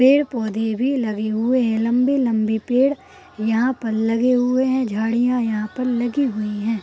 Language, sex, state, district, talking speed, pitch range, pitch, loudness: Hindi, female, Bihar, Purnia, 160 wpm, 220-255 Hz, 240 Hz, -20 LUFS